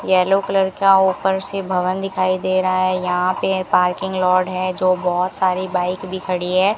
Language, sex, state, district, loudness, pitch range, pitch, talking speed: Hindi, female, Rajasthan, Bikaner, -18 LUFS, 185-190 Hz, 185 Hz, 195 wpm